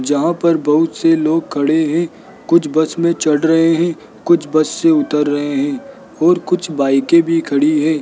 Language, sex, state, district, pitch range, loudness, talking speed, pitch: Hindi, male, Rajasthan, Jaipur, 150-170 Hz, -15 LUFS, 185 wpm, 160 Hz